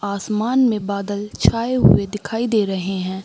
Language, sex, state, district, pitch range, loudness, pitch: Hindi, female, Bihar, Gaya, 200-225 Hz, -19 LUFS, 205 Hz